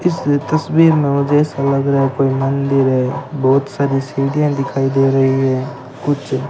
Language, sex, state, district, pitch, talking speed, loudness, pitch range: Hindi, male, Rajasthan, Bikaner, 140 Hz, 175 wpm, -16 LUFS, 135-145 Hz